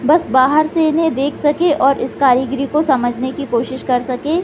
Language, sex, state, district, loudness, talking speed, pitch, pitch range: Hindi, female, Bihar, Gopalganj, -15 LUFS, 215 wpm, 275 Hz, 255-310 Hz